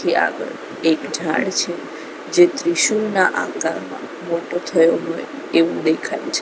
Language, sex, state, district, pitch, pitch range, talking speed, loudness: Gujarati, female, Gujarat, Gandhinagar, 175 Hz, 165-265 Hz, 130 wpm, -19 LUFS